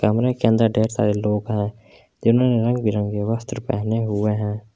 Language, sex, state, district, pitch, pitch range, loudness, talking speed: Hindi, male, Jharkhand, Palamu, 110 Hz, 105-115 Hz, -21 LUFS, 175 wpm